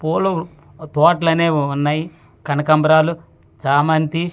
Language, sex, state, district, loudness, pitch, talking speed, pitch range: Telugu, male, Andhra Pradesh, Manyam, -17 LUFS, 155 Hz, 70 wpm, 145-165 Hz